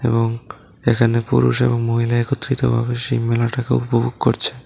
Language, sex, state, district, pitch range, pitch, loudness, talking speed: Bengali, male, Tripura, West Tripura, 115-125 Hz, 120 Hz, -18 LUFS, 130 wpm